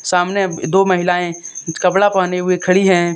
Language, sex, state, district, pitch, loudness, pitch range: Hindi, male, Jharkhand, Deoghar, 180 Hz, -15 LUFS, 175-190 Hz